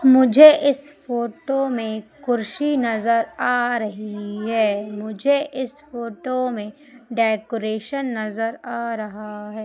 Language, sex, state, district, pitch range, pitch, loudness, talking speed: Hindi, female, Madhya Pradesh, Umaria, 215-260 Hz, 235 Hz, -21 LUFS, 110 wpm